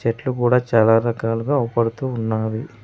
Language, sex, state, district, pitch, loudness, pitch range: Telugu, male, Telangana, Mahabubabad, 115 Hz, -20 LUFS, 115-125 Hz